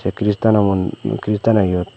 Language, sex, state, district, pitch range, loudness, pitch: Chakma, male, Tripura, Dhalai, 95-110 Hz, -17 LUFS, 105 Hz